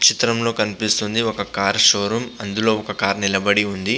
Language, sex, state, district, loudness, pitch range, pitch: Telugu, male, Andhra Pradesh, Visakhapatnam, -19 LUFS, 100-110 Hz, 105 Hz